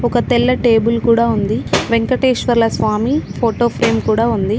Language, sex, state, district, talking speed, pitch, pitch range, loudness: Telugu, female, Telangana, Mahabubabad, 145 wpm, 230 Hz, 220-240 Hz, -15 LUFS